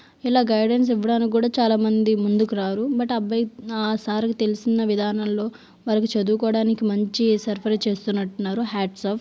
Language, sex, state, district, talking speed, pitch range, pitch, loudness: Telugu, female, Andhra Pradesh, Guntur, 130 wpm, 210-230 Hz, 220 Hz, -22 LUFS